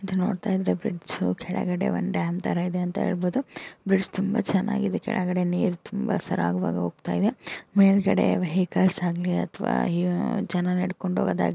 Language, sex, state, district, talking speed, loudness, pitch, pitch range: Kannada, female, Karnataka, Dakshina Kannada, 130 wpm, -25 LUFS, 185 Hz, 175-195 Hz